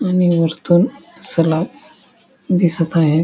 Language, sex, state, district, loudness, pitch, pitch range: Marathi, male, Maharashtra, Dhule, -15 LUFS, 175 Hz, 165-185 Hz